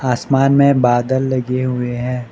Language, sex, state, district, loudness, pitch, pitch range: Hindi, male, Arunachal Pradesh, Lower Dibang Valley, -16 LUFS, 125 Hz, 125-135 Hz